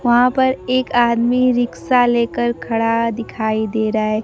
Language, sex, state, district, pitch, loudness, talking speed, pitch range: Hindi, female, Bihar, Kaimur, 235 Hz, -17 LUFS, 155 wpm, 220-245 Hz